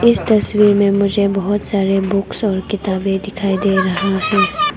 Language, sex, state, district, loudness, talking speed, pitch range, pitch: Hindi, female, Arunachal Pradesh, Longding, -16 LUFS, 165 wpm, 195-205 Hz, 200 Hz